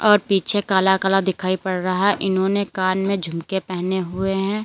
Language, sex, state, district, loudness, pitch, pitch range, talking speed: Hindi, female, Uttar Pradesh, Lalitpur, -20 LUFS, 190 Hz, 185-195 Hz, 195 wpm